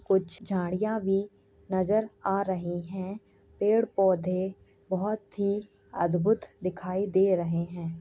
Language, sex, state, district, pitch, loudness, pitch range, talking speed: Hindi, female, Uttar Pradesh, Jyotiba Phule Nagar, 190 Hz, -29 LUFS, 185-205 Hz, 120 wpm